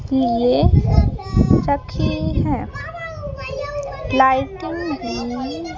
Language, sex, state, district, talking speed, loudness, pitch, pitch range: Hindi, female, Madhya Pradesh, Bhopal, 60 wpm, -20 LUFS, 265 Hz, 250-290 Hz